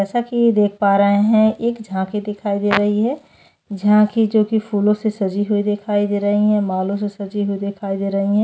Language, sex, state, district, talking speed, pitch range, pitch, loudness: Hindi, female, Chhattisgarh, Bastar, 220 wpm, 200-215 Hz, 205 Hz, -18 LUFS